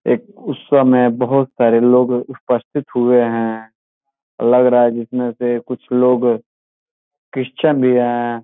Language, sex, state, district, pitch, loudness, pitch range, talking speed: Hindi, male, Bihar, Gopalganj, 125 Hz, -15 LUFS, 120-130 Hz, 135 wpm